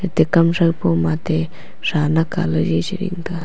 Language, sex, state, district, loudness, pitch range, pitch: Wancho, female, Arunachal Pradesh, Longding, -18 LUFS, 160-175 Hz, 165 Hz